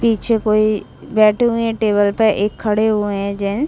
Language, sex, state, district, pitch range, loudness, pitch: Hindi, female, Chhattisgarh, Sarguja, 205-225 Hz, -16 LUFS, 215 Hz